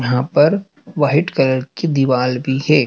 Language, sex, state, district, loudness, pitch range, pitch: Hindi, male, Madhya Pradesh, Dhar, -16 LUFS, 130-160 Hz, 140 Hz